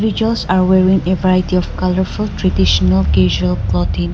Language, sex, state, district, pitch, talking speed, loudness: English, female, Nagaland, Dimapur, 180 Hz, 145 wpm, -15 LUFS